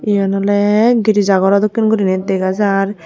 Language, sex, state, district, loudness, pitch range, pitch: Chakma, female, Tripura, Unakoti, -14 LUFS, 195-210 Hz, 200 Hz